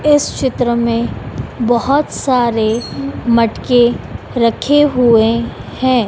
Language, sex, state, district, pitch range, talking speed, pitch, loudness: Hindi, female, Madhya Pradesh, Dhar, 230-260 Hz, 90 wpm, 240 Hz, -14 LUFS